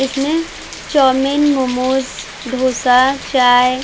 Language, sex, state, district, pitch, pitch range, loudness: Hindi, female, Uttar Pradesh, Varanasi, 260 Hz, 255-275 Hz, -14 LUFS